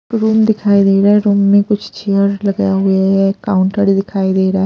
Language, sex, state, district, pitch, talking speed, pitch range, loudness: Hindi, female, Punjab, Pathankot, 200 Hz, 205 wpm, 195-205 Hz, -13 LUFS